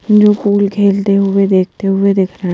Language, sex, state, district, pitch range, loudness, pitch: Hindi, female, Madhya Pradesh, Bhopal, 195-205 Hz, -12 LUFS, 200 Hz